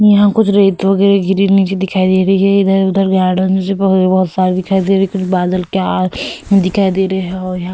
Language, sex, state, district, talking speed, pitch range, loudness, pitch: Hindi, female, Goa, North and South Goa, 230 wpm, 185-195 Hz, -13 LUFS, 190 Hz